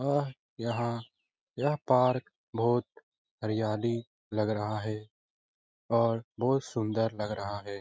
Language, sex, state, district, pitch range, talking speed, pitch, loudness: Hindi, male, Bihar, Lakhisarai, 105-120 Hz, 115 wpm, 115 Hz, -31 LUFS